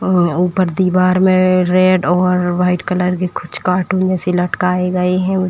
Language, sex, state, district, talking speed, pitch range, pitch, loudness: Hindi, female, Uttar Pradesh, Etah, 165 wpm, 180-185 Hz, 180 Hz, -15 LUFS